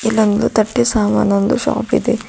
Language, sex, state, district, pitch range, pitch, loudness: Kannada, female, Karnataka, Bidar, 210-235 Hz, 220 Hz, -15 LUFS